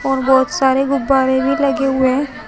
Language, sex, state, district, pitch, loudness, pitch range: Hindi, female, Uttar Pradesh, Shamli, 270 Hz, -15 LUFS, 260-275 Hz